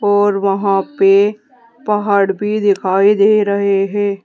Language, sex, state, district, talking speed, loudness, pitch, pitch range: Hindi, female, Uttar Pradesh, Saharanpur, 125 wpm, -14 LUFS, 200 Hz, 195-210 Hz